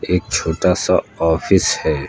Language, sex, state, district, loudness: Hindi, male, Uttar Pradesh, Lucknow, -17 LUFS